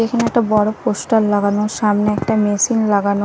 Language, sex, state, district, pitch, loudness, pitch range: Bengali, female, Odisha, Nuapada, 210 Hz, -16 LUFS, 205-225 Hz